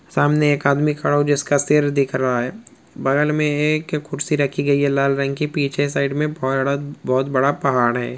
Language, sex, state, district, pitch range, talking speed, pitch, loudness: Hindi, male, Rajasthan, Churu, 135-150 Hz, 215 wpm, 140 Hz, -19 LUFS